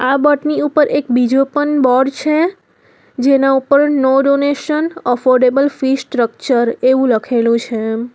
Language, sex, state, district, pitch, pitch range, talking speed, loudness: Gujarati, female, Gujarat, Valsad, 270 Hz, 245-290 Hz, 145 wpm, -14 LUFS